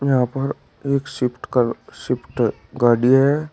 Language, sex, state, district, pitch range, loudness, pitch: Hindi, male, Uttar Pradesh, Shamli, 125-140 Hz, -20 LUFS, 130 Hz